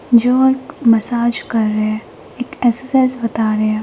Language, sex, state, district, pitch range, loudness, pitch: Hindi, female, Uttar Pradesh, Jalaun, 220-255 Hz, -16 LUFS, 235 Hz